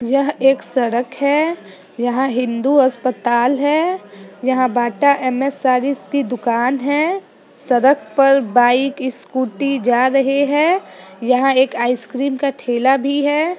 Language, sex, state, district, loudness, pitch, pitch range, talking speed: Hindi, female, Bihar, Gopalganj, -16 LUFS, 265 Hz, 245-280 Hz, 130 wpm